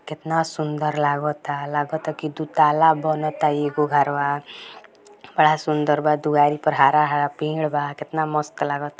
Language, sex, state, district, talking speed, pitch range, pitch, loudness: Bhojpuri, female, Bihar, Gopalganj, 155 wpm, 145-155 Hz, 150 Hz, -21 LUFS